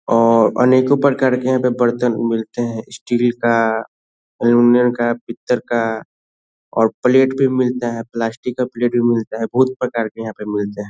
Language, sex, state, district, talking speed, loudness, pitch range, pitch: Hindi, male, Bihar, Saran, 170 wpm, -17 LUFS, 115-125 Hz, 120 Hz